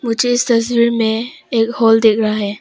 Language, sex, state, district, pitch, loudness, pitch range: Hindi, female, Arunachal Pradesh, Papum Pare, 230 Hz, -15 LUFS, 220-240 Hz